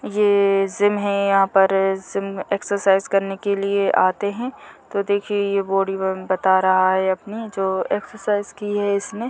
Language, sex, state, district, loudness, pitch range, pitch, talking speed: Hindi, female, Chhattisgarh, Bilaspur, -20 LUFS, 195-205 Hz, 195 Hz, 160 wpm